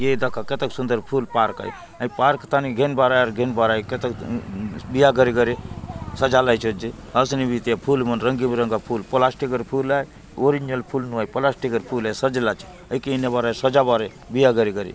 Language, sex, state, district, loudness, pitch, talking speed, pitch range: Halbi, male, Chhattisgarh, Bastar, -21 LUFS, 125 Hz, 215 wpm, 115-135 Hz